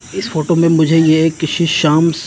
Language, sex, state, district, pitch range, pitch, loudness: Hindi, male, Chandigarh, Chandigarh, 155-170 Hz, 165 Hz, -13 LUFS